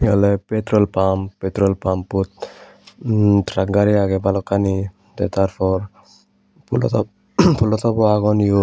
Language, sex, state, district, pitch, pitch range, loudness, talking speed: Chakma, male, Tripura, West Tripura, 100 Hz, 95-105 Hz, -18 LUFS, 125 wpm